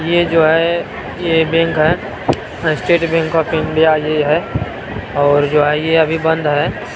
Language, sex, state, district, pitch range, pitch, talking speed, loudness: Maithili, male, Bihar, Araria, 155-165 Hz, 160 Hz, 165 wpm, -15 LUFS